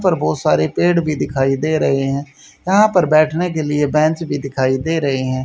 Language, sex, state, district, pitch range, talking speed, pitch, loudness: Hindi, male, Haryana, Rohtak, 135-160 Hz, 220 wpm, 150 Hz, -16 LUFS